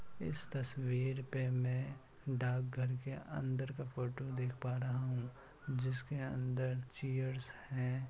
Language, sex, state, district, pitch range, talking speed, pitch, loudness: Hindi, male, Bihar, Kishanganj, 125-135 Hz, 125 wpm, 130 Hz, -40 LUFS